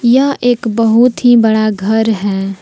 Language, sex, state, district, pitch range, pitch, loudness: Hindi, female, Jharkhand, Palamu, 215-245 Hz, 225 Hz, -11 LUFS